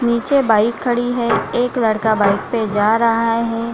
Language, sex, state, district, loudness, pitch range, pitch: Hindi, female, Bihar, Gaya, -17 LUFS, 220-240 Hz, 230 Hz